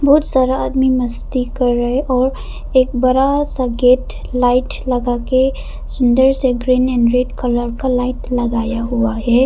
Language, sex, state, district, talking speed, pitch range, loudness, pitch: Hindi, female, Arunachal Pradesh, Papum Pare, 160 wpm, 245-260 Hz, -16 LUFS, 255 Hz